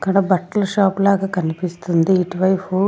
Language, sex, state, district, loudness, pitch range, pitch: Telugu, female, Andhra Pradesh, Sri Satya Sai, -18 LUFS, 180-195 Hz, 190 Hz